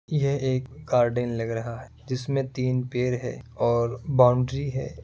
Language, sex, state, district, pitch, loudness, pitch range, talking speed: Hindi, male, Bihar, Kishanganj, 125 Hz, -25 LUFS, 120-135 Hz, 165 wpm